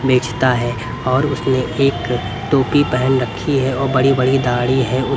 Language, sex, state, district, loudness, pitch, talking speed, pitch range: Hindi, male, Haryana, Rohtak, -17 LUFS, 130 Hz, 150 wpm, 125-135 Hz